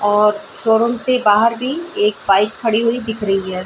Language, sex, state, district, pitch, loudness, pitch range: Hindi, female, Chhattisgarh, Bilaspur, 225 Hz, -16 LUFS, 205-240 Hz